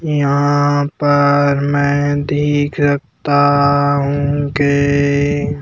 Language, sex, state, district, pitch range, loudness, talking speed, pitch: Hindi, male, Madhya Pradesh, Bhopal, 140-145 Hz, -14 LUFS, 85 wpm, 145 Hz